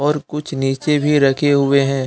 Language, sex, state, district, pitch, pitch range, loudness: Hindi, male, Jharkhand, Deoghar, 145 Hz, 135-150 Hz, -16 LUFS